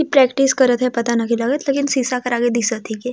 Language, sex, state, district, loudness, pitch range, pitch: Sadri, female, Chhattisgarh, Jashpur, -17 LUFS, 235-270 Hz, 250 Hz